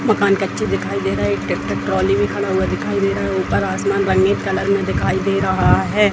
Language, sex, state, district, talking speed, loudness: Hindi, female, Bihar, Madhepura, 285 wpm, -18 LUFS